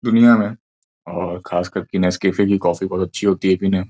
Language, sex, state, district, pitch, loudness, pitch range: Hindi, male, Uttar Pradesh, Gorakhpur, 95 Hz, -18 LUFS, 90-100 Hz